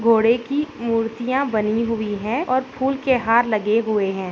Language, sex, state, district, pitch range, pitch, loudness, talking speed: Hindi, female, Bihar, Bhagalpur, 215-260 Hz, 230 Hz, -20 LUFS, 180 wpm